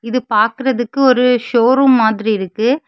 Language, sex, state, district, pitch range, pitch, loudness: Tamil, female, Tamil Nadu, Kanyakumari, 220-260 Hz, 245 Hz, -14 LUFS